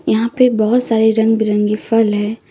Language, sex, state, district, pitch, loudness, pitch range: Hindi, female, Jharkhand, Deoghar, 220 Hz, -14 LUFS, 215-230 Hz